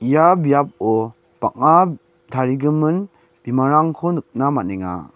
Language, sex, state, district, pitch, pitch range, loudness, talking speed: Garo, male, Meghalaya, West Garo Hills, 140 Hz, 120-155 Hz, -18 LUFS, 80 wpm